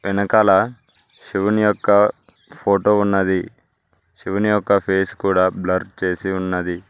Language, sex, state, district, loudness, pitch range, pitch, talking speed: Telugu, male, Telangana, Mahabubabad, -18 LUFS, 95-105 Hz, 100 Hz, 105 wpm